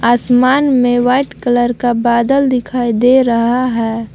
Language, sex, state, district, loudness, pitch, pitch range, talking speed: Hindi, female, Jharkhand, Palamu, -13 LUFS, 245 Hz, 235-255 Hz, 145 wpm